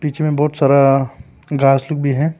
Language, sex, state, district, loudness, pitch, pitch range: Hindi, male, Arunachal Pradesh, Papum Pare, -15 LUFS, 140 Hz, 135-150 Hz